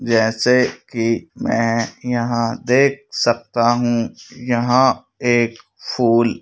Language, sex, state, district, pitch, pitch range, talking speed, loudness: Hindi, male, Madhya Pradesh, Bhopal, 120 Hz, 115-125 Hz, 95 wpm, -18 LUFS